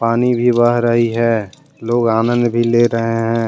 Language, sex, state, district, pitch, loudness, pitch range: Hindi, male, Jharkhand, Deoghar, 115 Hz, -15 LUFS, 115-120 Hz